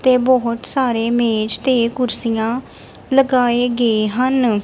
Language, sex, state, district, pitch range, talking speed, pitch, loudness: Punjabi, female, Punjab, Kapurthala, 230-255 Hz, 115 wpm, 245 Hz, -17 LUFS